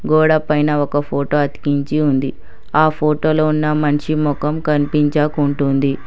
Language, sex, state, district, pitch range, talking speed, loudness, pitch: Telugu, male, Telangana, Hyderabad, 145-155 Hz, 130 wpm, -17 LUFS, 150 Hz